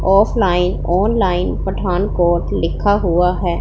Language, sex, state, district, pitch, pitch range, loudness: Hindi, female, Punjab, Pathankot, 180 Hz, 175-200 Hz, -16 LUFS